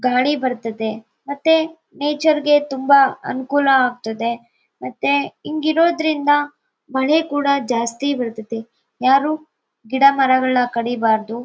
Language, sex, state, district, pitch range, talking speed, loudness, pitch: Kannada, female, Karnataka, Bellary, 235-290 Hz, 95 wpm, -18 LUFS, 265 Hz